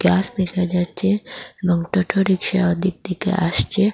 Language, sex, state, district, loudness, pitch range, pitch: Bengali, female, Assam, Hailakandi, -20 LUFS, 180-195 Hz, 185 Hz